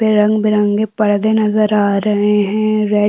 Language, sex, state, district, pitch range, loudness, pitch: Hindi, female, Maharashtra, Aurangabad, 205-215 Hz, -14 LUFS, 210 Hz